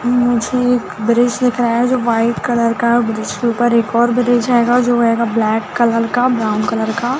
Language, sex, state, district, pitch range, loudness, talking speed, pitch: Hindi, female, Chhattisgarh, Bilaspur, 230-245 Hz, -15 LUFS, 235 wpm, 235 Hz